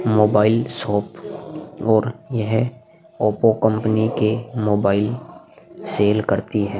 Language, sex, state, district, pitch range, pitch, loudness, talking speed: Hindi, male, Bihar, Vaishali, 105-115 Hz, 110 Hz, -20 LUFS, 95 wpm